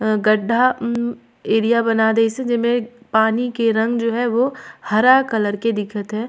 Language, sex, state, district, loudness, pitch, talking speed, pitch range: Surgujia, female, Chhattisgarh, Sarguja, -18 LUFS, 230 Hz, 160 wpm, 220-240 Hz